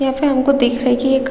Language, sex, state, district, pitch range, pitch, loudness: Hindi, female, Chhattisgarh, Raigarh, 255-270 Hz, 265 Hz, -16 LUFS